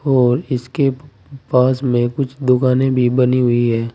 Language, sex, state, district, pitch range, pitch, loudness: Hindi, male, Uttar Pradesh, Saharanpur, 125-135 Hz, 125 Hz, -16 LUFS